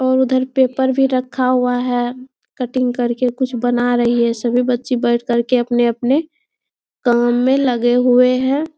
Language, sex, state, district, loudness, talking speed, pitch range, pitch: Hindi, female, Bihar, Bhagalpur, -16 LUFS, 165 wpm, 240-260 Hz, 250 Hz